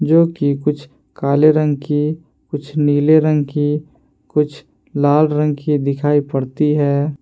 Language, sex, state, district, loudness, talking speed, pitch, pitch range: Hindi, male, Jharkhand, Palamu, -16 LUFS, 140 wpm, 150 Hz, 145-150 Hz